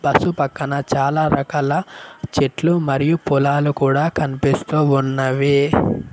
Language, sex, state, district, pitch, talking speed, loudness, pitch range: Telugu, male, Telangana, Mahabubabad, 140 Hz, 100 wpm, -18 LUFS, 140-150 Hz